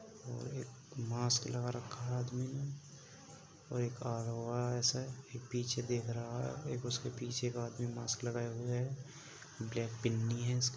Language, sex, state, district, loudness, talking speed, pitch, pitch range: Hindi, male, Uttar Pradesh, Jalaun, -39 LUFS, 175 wpm, 125 Hz, 120-130 Hz